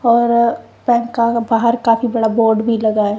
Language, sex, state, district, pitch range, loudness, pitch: Hindi, female, Punjab, Kapurthala, 225-235 Hz, -15 LUFS, 230 Hz